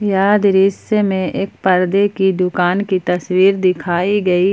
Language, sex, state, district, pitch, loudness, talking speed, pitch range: Hindi, female, Jharkhand, Palamu, 190 Hz, -15 LUFS, 145 wpm, 185-200 Hz